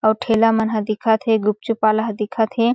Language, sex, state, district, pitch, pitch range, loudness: Chhattisgarhi, female, Chhattisgarh, Sarguja, 220 Hz, 215-225 Hz, -19 LUFS